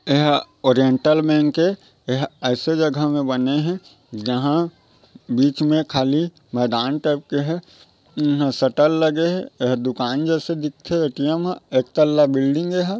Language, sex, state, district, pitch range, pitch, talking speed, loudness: Chhattisgarhi, male, Chhattisgarh, Raigarh, 130-160 Hz, 150 Hz, 155 wpm, -20 LUFS